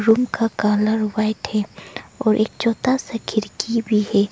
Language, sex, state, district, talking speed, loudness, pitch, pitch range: Hindi, female, Arunachal Pradesh, Longding, 165 wpm, -20 LUFS, 220 Hz, 210-230 Hz